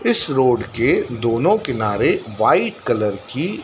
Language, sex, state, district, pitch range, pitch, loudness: Hindi, male, Madhya Pradesh, Dhar, 115-130 Hz, 120 Hz, -18 LUFS